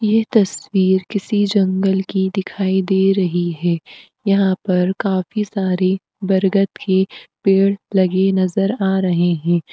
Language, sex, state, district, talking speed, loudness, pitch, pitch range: Hindi, female, Uttar Pradesh, Etah, 130 wpm, -18 LUFS, 190 Hz, 185-195 Hz